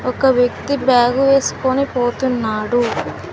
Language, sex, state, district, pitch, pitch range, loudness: Telugu, female, Telangana, Mahabubabad, 255 Hz, 240-270 Hz, -16 LUFS